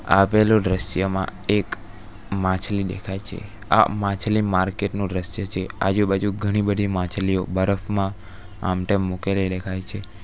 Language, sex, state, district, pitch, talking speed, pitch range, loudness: Gujarati, male, Gujarat, Valsad, 100 Hz, 130 wpm, 95-100 Hz, -23 LUFS